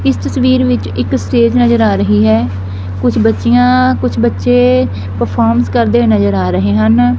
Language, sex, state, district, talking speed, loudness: Punjabi, female, Punjab, Fazilka, 165 wpm, -11 LUFS